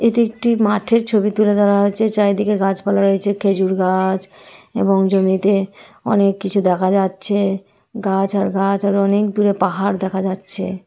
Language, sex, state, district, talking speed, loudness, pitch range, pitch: Bengali, female, West Bengal, Jhargram, 155 wpm, -16 LUFS, 190-205 Hz, 200 Hz